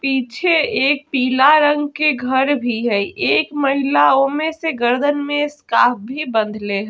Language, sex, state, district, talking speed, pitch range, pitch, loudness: Bajjika, female, Bihar, Vaishali, 165 wpm, 245-295 Hz, 275 Hz, -17 LUFS